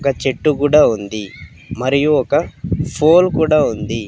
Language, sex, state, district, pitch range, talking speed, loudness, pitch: Telugu, female, Andhra Pradesh, Sri Satya Sai, 115-150 Hz, 130 wpm, -15 LUFS, 140 Hz